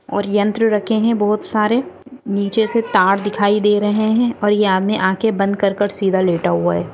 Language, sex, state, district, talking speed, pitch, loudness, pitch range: Hindi, female, Goa, North and South Goa, 205 wpm, 205 Hz, -16 LUFS, 200-220 Hz